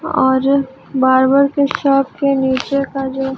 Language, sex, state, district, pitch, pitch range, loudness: Hindi, female, Chhattisgarh, Raipur, 275 Hz, 265-275 Hz, -15 LUFS